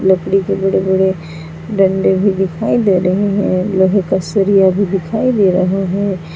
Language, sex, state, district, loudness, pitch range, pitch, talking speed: Hindi, female, Uttar Pradesh, Saharanpur, -14 LUFS, 185-200 Hz, 190 Hz, 170 wpm